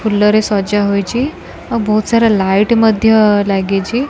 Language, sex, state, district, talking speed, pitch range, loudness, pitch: Odia, female, Odisha, Khordha, 145 wpm, 200-230 Hz, -13 LUFS, 215 Hz